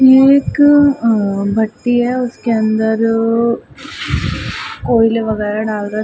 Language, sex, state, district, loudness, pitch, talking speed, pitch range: Hindi, female, Bihar, Gaya, -14 LUFS, 225 Hz, 120 wpm, 220-245 Hz